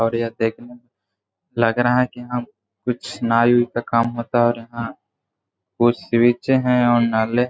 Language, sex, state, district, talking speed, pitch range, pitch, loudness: Hindi, male, Bihar, Gaya, 175 wpm, 115-120 Hz, 120 Hz, -19 LUFS